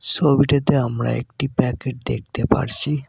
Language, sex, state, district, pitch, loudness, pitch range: Bengali, male, West Bengal, Cooch Behar, 135 Hz, -19 LUFS, 125-140 Hz